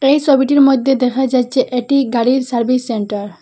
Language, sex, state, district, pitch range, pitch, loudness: Bengali, female, Assam, Hailakandi, 240-270 Hz, 255 Hz, -14 LUFS